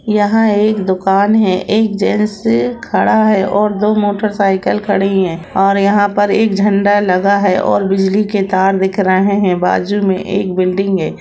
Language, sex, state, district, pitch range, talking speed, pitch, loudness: Hindi, female, Jharkhand, Jamtara, 190-205 Hz, 175 wpm, 200 Hz, -13 LUFS